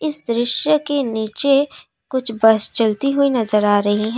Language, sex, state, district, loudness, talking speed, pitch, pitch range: Hindi, female, Assam, Kamrup Metropolitan, -17 LUFS, 170 wpm, 240 Hz, 220-280 Hz